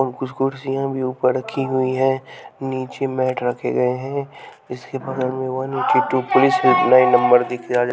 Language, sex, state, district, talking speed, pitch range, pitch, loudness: Hindi, male, Bihar, West Champaran, 165 wpm, 125-135 Hz, 130 Hz, -19 LUFS